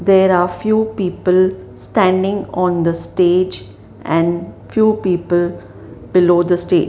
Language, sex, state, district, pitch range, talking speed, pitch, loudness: English, female, Maharashtra, Mumbai Suburban, 170-190 Hz, 120 wpm, 180 Hz, -16 LUFS